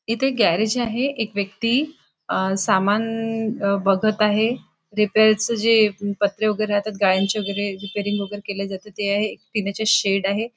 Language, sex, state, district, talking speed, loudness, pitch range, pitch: Marathi, female, Maharashtra, Nagpur, 155 wpm, -21 LUFS, 200-225 Hz, 210 Hz